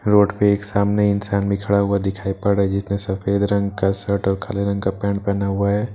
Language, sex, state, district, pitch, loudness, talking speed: Hindi, male, Bihar, Katihar, 100 Hz, -20 LUFS, 240 wpm